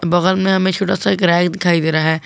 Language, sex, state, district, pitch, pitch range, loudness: Hindi, male, Jharkhand, Garhwa, 180 Hz, 170-190 Hz, -15 LUFS